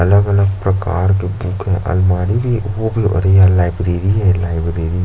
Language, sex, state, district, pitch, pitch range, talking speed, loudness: Hindi, male, Chhattisgarh, Jashpur, 95 Hz, 90-100 Hz, 200 wpm, -15 LUFS